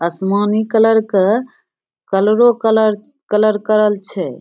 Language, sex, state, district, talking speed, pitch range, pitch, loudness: Maithili, female, Bihar, Samastipur, 110 wpm, 205-220 Hz, 215 Hz, -15 LUFS